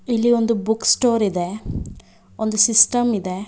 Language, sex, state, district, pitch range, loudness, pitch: Kannada, female, Karnataka, Bangalore, 210-235 Hz, -17 LUFS, 220 Hz